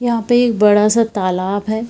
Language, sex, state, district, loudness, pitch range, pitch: Hindi, female, Bihar, Purnia, -15 LUFS, 205-230 Hz, 220 Hz